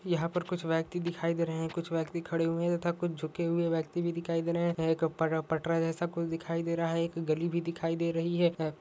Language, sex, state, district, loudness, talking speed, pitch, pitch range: Hindi, male, Jharkhand, Jamtara, -32 LUFS, 250 wpm, 165 Hz, 165-170 Hz